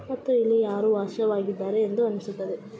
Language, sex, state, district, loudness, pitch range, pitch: Kannada, female, Karnataka, Shimoga, -25 LUFS, 205-225 Hz, 215 Hz